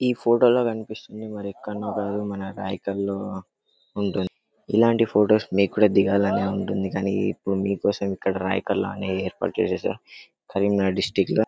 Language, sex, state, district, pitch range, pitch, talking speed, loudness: Telugu, male, Telangana, Karimnagar, 95-110 Hz, 100 Hz, 120 wpm, -24 LUFS